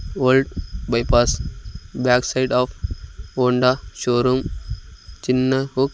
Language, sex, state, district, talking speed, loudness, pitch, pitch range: Telugu, male, Andhra Pradesh, Sri Satya Sai, 90 wpm, -20 LUFS, 125 Hz, 90-130 Hz